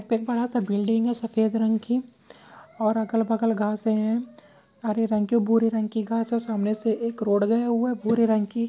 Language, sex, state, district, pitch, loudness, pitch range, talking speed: Hindi, male, Maharashtra, Chandrapur, 225 Hz, -24 LUFS, 220-230 Hz, 215 wpm